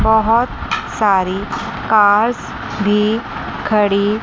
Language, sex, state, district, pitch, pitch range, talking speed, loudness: Hindi, female, Chandigarh, Chandigarh, 215 Hz, 205-225 Hz, 70 wpm, -16 LUFS